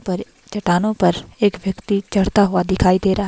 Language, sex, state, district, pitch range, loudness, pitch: Hindi, female, Himachal Pradesh, Shimla, 185-205 Hz, -18 LUFS, 195 Hz